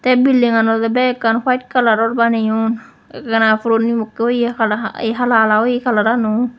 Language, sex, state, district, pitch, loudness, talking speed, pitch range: Chakma, female, Tripura, West Tripura, 230 Hz, -15 LUFS, 175 wpm, 225-245 Hz